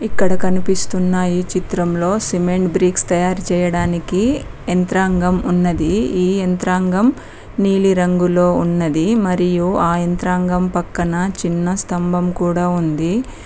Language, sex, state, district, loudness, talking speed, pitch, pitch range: Telugu, female, Telangana, Mahabubabad, -17 LUFS, 100 wpm, 180 Hz, 175-185 Hz